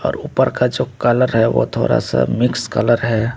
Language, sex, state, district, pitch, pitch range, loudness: Hindi, male, Tripura, West Tripura, 120 Hz, 115-120 Hz, -17 LUFS